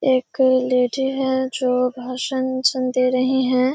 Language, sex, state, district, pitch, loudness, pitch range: Hindi, female, Bihar, Kishanganj, 255 Hz, -20 LUFS, 255-260 Hz